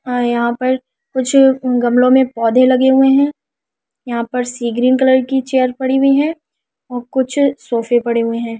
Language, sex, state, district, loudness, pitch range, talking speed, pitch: Hindi, female, Delhi, New Delhi, -14 LUFS, 240-265 Hz, 175 wpm, 255 Hz